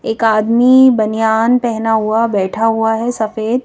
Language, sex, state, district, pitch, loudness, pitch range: Hindi, female, Madhya Pradesh, Bhopal, 225 Hz, -13 LUFS, 220-235 Hz